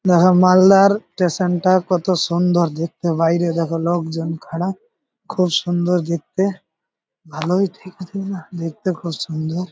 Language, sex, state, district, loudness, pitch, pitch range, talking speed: Bengali, male, West Bengal, Malda, -18 LUFS, 180 Hz, 165-185 Hz, 110 wpm